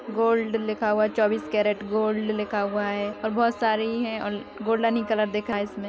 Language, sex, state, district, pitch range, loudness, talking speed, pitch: Hindi, female, Bihar, Kishanganj, 210-225 Hz, -25 LUFS, 235 wpm, 215 Hz